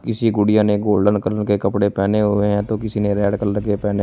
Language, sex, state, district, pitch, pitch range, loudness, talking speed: Hindi, male, Uttar Pradesh, Shamli, 105 Hz, 100-105 Hz, -18 LUFS, 270 wpm